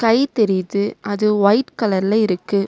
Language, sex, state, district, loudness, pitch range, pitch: Tamil, female, Tamil Nadu, Nilgiris, -18 LUFS, 200-220 Hz, 205 Hz